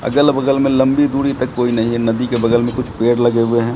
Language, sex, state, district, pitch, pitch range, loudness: Hindi, male, Bihar, Katihar, 120 Hz, 120-135 Hz, -15 LUFS